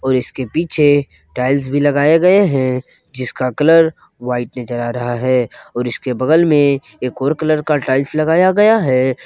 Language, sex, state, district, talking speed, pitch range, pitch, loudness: Hindi, male, Jharkhand, Garhwa, 175 wpm, 125-155 Hz, 135 Hz, -15 LUFS